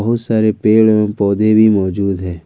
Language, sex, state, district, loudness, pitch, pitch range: Hindi, male, Jharkhand, Ranchi, -13 LUFS, 105 Hz, 100-110 Hz